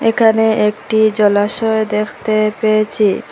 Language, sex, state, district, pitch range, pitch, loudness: Bengali, female, Assam, Hailakandi, 210-220 Hz, 215 Hz, -14 LUFS